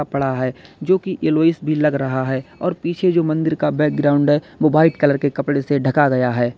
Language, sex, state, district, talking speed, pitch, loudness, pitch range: Hindi, male, Uttar Pradesh, Lalitpur, 230 wpm, 150 Hz, -18 LUFS, 140-160 Hz